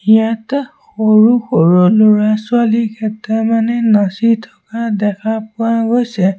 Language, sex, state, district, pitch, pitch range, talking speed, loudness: Assamese, male, Assam, Sonitpur, 220 Hz, 215-230 Hz, 95 wpm, -13 LUFS